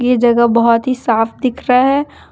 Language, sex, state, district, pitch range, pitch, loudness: Hindi, female, Jharkhand, Deoghar, 235-255 Hz, 245 Hz, -13 LUFS